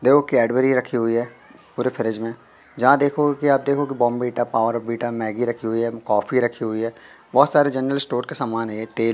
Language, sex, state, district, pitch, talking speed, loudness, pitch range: Hindi, male, Madhya Pradesh, Katni, 120 Hz, 225 wpm, -21 LUFS, 115-135 Hz